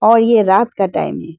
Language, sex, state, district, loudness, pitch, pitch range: Hindi, female, Arunachal Pradesh, Lower Dibang Valley, -14 LUFS, 220 Hz, 195-230 Hz